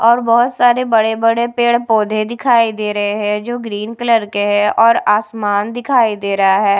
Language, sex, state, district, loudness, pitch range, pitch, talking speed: Hindi, female, Punjab, Kapurthala, -14 LUFS, 210-235 Hz, 225 Hz, 175 wpm